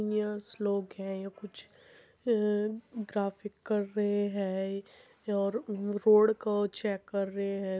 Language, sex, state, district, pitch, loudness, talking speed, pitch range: Hindi, female, Uttar Pradesh, Muzaffarnagar, 205 Hz, -31 LUFS, 130 wpm, 200-215 Hz